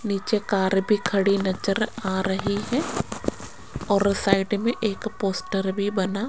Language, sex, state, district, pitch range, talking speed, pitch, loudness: Hindi, female, Rajasthan, Jaipur, 195-210 Hz, 150 wpm, 200 Hz, -24 LUFS